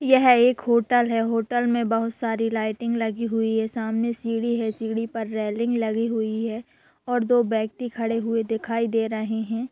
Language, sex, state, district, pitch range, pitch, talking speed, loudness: Hindi, female, Uttar Pradesh, Budaun, 225-235 Hz, 230 Hz, 185 wpm, -24 LUFS